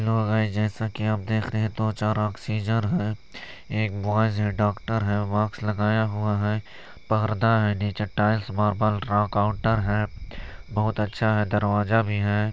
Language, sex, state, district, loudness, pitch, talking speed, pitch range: Hindi, male, Chhattisgarh, Balrampur, -25 LUFS, 105 Hz, 165 wpm, 105-110 Hz